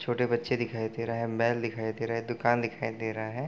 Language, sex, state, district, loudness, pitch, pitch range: Hindi, male, Bihar, Gopalganj, -30 LUFS, 115 Hz, 115-120 Hz